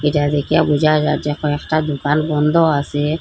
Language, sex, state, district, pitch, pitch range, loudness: Bengali, female, Assam, Hailakandi, 150 Hz, 145-155 Hz, -17 LUFS